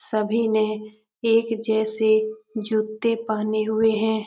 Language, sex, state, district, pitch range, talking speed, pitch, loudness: Hindi, female, Bihar, Jamui, 215-225 Hz, 110 wpm, 220 Hz, -23 LUFS